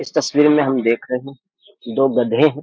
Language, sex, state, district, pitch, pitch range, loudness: Hindi, male, Uttar Pradesh, Jyotiba Phule Nagar, 135 Hz, 125-150 Hz, -17 LUFS